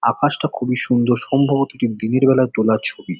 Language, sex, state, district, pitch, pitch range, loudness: Bengali, male, West Bengal, Kolkata, 125 Hz, 120-135 Hz, -17 LUFS